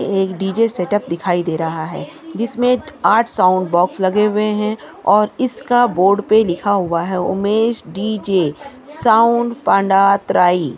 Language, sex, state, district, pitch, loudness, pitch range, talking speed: Hindi, female, Chhattisgarh, Kabirdham, 200 Hz, -16 LUFS, 180-225 Hz, 145 wpm